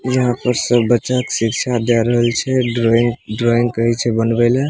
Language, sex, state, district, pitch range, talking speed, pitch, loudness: Maithili, male, Bihar, Samastipur, 115-125 Hz, 190 wpm, 120 Hz, -16 LUFS